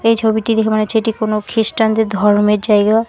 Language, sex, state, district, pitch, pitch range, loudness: Bengali, female, West Bengal, Alipurduar, 220 Hz, 210-225 Hz, -14 LUFS